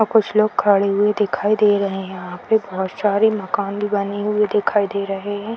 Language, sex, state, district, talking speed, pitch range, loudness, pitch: Hindi, female, Bihar, Jahanabad, 225 wpm, 200-210 Hz, -19 LUFS, 205 Hz